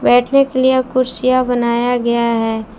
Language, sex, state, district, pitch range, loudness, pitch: Hindi, female, Jharkhand, Palamu, 235-255 Hz, -15 LUFS, 245 Hz